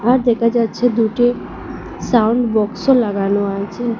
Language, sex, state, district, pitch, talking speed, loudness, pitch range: Bengali, female, Assam, Hailakandi, 230 Hz, 120 wpm, -16 LUFS, 215-240 Hz